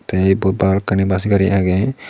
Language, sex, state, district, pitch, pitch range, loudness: Chakma, male, Tripura, Dhalai, 95 Hz, 95-100 Hz, -16 LUFS